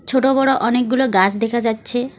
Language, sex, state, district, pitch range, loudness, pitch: Bengali, female, West Bengal, Alipurduar, 225-260 Hz, -17 LUFS, 245 Hz